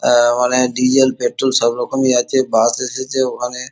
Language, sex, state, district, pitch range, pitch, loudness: Bengali, male, West Bengal, Kolkata, 120-130 Hz, 125 Hz, -16 LUFS